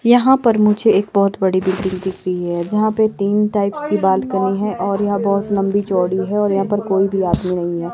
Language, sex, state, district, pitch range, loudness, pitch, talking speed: Hindi, female, Himachal Pradesh, Shimla, 190-210 Hz, -17 LUFS, 200 Hz, 235 wpm